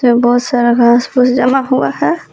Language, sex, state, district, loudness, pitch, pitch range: Hindi, female, Jharkhand, Palamu, -12 LUFS, 245 Hz, 240-255 Hz